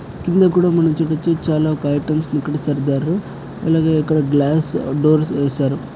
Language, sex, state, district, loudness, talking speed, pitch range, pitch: Telugu, male, Andhra Pradesh, Krishna, -17 LUFS, 140 wpm, 145-160 Hz, 155 Hz